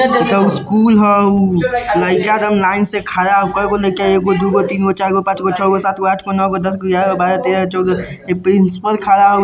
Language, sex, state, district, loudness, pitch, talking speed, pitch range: Bajjika, male, Bihar, Vaishali, -14 LUFS, 195 Hz, 165 wpm, 190-200 Hz